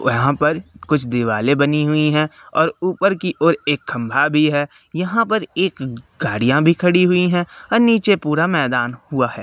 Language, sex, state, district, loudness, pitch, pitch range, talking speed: Hindi, male, Madhya Pradesh, Katni, -17 LUFS, 150 Hz, 135-180 Hz, 185 wpm